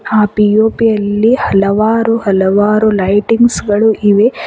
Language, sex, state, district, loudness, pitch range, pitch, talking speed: Kannada, female, Karnataka, Bidar, -11 LUFS, 205-225 Hz, 215 Hz, 105 wpm